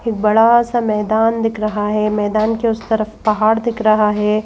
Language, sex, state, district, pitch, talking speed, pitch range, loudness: Hindi, female, Madhya Pradesh, Bhopal, 215 Hz, 200 wpm, 215-225 Hz, -16 LUFS